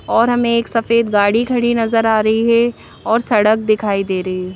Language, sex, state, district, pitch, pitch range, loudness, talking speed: Hindi, female, Madhya Pradesh, Bhopal, 225 Hz, 210-235 Hz, -15 LUFS, 210 wpm